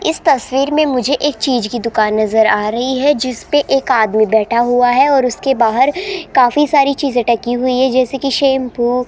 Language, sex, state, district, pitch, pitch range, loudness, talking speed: Hindi, female, Rajasthan, Jaipur, 255 Hz, 235-275 Hz, -14 LUFS, 205 wpm